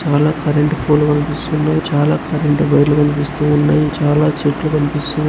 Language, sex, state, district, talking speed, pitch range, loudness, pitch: Telugu, male, Andhra Pradesh, Anantapur, 150 wpm, 145-150 Hz, -15 LUFS, 150 Hz